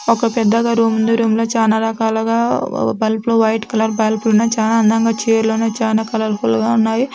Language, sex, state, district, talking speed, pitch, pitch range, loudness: Telugu, female, Andhra Pradesh, Anantapur, 185 wpm, 225 Hz, 220-230 Hz, -16 LUFS